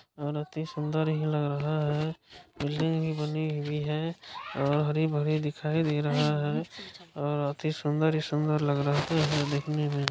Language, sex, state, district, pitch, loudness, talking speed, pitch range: Hindi, male, Uttar Pradesh, Gorakhpur, 150 Hz, -29 LUFS, 170 wpm, 145-155 Hz